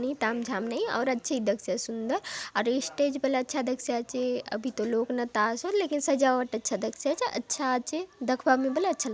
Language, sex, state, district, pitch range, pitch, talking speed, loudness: Halbi, female, Chhattisgarh, Bastar, 235-280 Hz, 255 Hz, 230 wpm, -29 LUFS